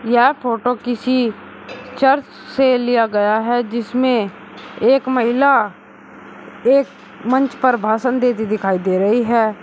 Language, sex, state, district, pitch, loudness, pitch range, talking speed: Hindi, male, Uttar Pradesh, Shamli, 245 Hz, -17 LUFS, 225-255 Hz, 125 wpm